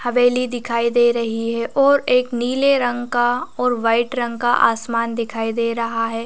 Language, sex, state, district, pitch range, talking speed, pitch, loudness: Hindi, female, Chhattisgarh, Raigarh, 230-245 Hz, 190 wpm, 240 Hz, -19 LUFS